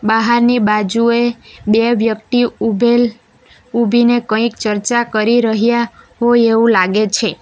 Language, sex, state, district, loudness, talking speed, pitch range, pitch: Gujarati, female, Gujarat, Valsad, -14 LUFS, 115 wpm, 220-235 Hz, 230 Hz